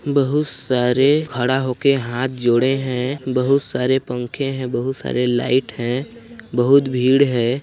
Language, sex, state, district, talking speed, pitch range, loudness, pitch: Hindi, male, Chhattisgarh, Sarguja, 140 wpm, 125-140 Hz, -19 LUFS, 130 Hz